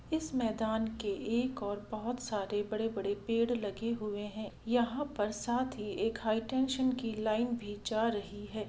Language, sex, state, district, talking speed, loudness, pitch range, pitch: Hindi, female, Bihar, Gopalganj, 165 wpm, -35 LUFS, 210-240 Hz, 220 Hz